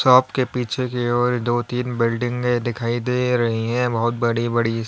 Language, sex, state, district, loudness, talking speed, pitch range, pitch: Hindi, male, Uttar Pradesh, Lalitpur, -21 LUFS, 185 wpm, 120-125 Hz, 120 Hz